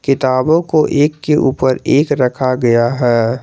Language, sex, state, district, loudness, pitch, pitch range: Hindi, male, Jharkhand, Garhwa, -14 LUFS, 135 Hz, 125-150 Hz